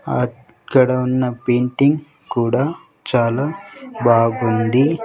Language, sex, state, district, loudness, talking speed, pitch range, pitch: Telugu, male, Andhra Pradesh, Sri Satya Sai, -18 LUFS, 70 wpm, 120-145 Hz, 125 Hz